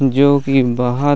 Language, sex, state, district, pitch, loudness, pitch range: Chhattisgarhi, male, Chhattisgarh, Raigarh, 135 Hz, -15 LUFS, 125-140 Hz